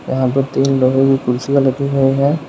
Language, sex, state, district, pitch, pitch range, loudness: Hindi, male, Uttar Pradesh, Lucknow, 135 Hz, 130-140 Hz, -15 LUFS